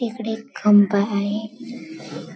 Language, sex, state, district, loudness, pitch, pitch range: Marathi, female, Maharashtra, Chandrapur, -20 LUFS, 220 Hz, 205-240 Hz